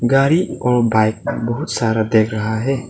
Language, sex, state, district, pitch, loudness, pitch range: Hindi, male, Arunachal Pradesh, Lower Dibang Valley, 115 Hz, -17 LUFS, 110-135 Hz